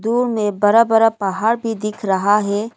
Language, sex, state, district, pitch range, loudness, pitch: Hindi, female, Arunachal Pradesh, Lower Dibang Valley, 205-225 Hz, -17 LUFS, 215 Hz